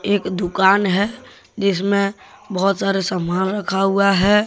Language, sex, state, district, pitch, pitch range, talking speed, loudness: Hindi, male, Jharkhand, Deoghar, 195 Hz, 190-200 Hz, 135 wpm, -18 LUFS